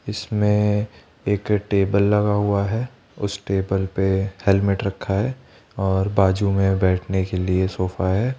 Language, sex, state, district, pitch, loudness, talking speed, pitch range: Hindi, male, Rajasthan, Jaipur, 100 Hz, -21 LUFS, 145 wpm, 95-105 Hz